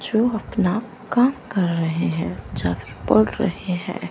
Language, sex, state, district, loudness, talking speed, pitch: Hindi, female, Chandigarh, Chandigarh, -22 LUFS, 160 wpm, 180 Hz